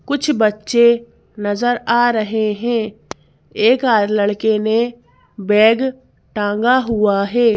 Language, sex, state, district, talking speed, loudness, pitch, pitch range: Hindi, female, Madhya Pradesh, Bhopal, 110 wpm, -16 LUFS, 225 Hz, 210-240 Hz